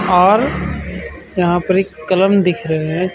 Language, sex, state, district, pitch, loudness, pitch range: Hindi, male, Jharkhand, Ranchi, 180 Hz, -15 LUFS, 175-190 Hz